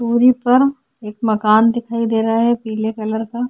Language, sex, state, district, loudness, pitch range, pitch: Hindi, female, Bihar, Vaishali, -16 LUFS, 220-240 Hz, 230 Hz